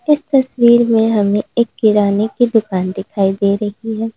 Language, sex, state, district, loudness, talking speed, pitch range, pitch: Hindi, female, Uttar Pradesh, Lalitpur, -15 LUFS, 170 wpm, 205-235 Hz, 220 Hz